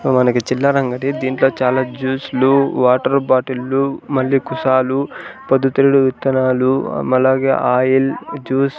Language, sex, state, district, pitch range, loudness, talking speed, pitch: Telugu, male, Andhra Pradesh, Sri Satya Sai, 130-135 Hz, -16 LUFS, 125 wpm, 130 Hz